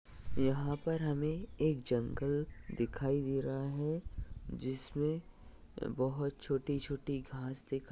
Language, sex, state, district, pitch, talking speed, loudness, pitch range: Hindi, male, Maharashtra, Solapur, 140 Hz, 115 wpm, -37 LUFS, 135-145 Hz